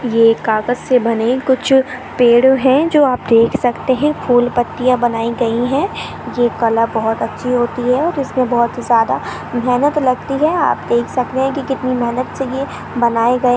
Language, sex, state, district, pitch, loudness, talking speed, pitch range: Hindi, female, Chhattisgarh, Sarguja, 245 Hz, -15 LUFS, 180 wpm, 235-265 Hz